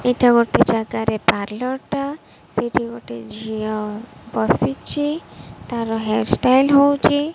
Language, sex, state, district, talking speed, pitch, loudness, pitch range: Odia, female, Odisha, Malkangiri, 105 wpm, 230 Hz, -19 LUFS, 215-265 Hz